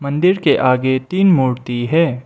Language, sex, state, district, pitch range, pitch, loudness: Hindi, male, Mizoram, Aizawl, 130-170 Hz, 135 Hz, -15 LUFS